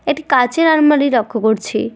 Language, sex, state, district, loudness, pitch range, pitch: Bengali, female, West Bengal, Cooch Behar, -14 LUFS, 230-300 Hz, 275 Hz